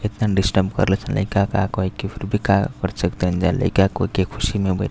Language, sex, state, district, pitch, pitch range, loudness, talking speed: Bhojpuri, male, Uttar Pradesh, Deoria, 100 Hz, 95-105 Hz, -20 LUFS, 245 wpm